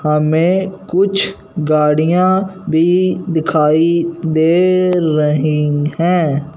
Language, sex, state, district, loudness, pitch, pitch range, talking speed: Hindi, male, Punjab, Fazilka, -14 LUFS, 165 Hz, 155-180 Hz, 75 wpm